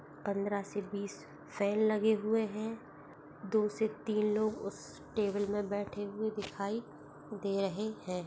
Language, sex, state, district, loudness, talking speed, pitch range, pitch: Hindi, female, Chhattisgarh, Bastar, -35 LUFS, 130 wpm, 200-215 Hz, 205 Hz